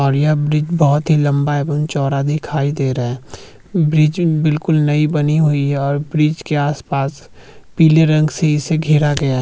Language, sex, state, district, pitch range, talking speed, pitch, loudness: Hindi, male, Uttarakhand, Tehri Garhwal, 140-155 Hz, 195 wpm, 150 Hz, -16 LUFS